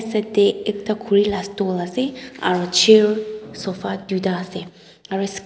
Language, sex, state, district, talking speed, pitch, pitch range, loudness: Nagamese, female, Nagaland, Dimapur, 145 wpm, 200 Hz, 190-215 Hz, -20 LUFS